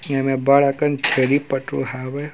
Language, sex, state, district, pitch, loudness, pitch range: Chhattisgarhi, male, Chhattisgarh, Raigarh, 135 Hz, -19 LUFS, 135-140 Hz